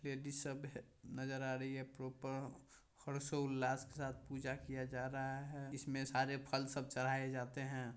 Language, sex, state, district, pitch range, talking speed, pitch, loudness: Hindi, male, Bihar, Samastipur, 130-140 Hz, 175 wpm, 135 Hz, -44 LUFS